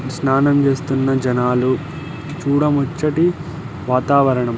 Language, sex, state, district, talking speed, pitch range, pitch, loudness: Telugu, male, Andhra Pradesh, Anantapur, 65 wpm, 130-150 Hz, 140 Hz, -17 LUFS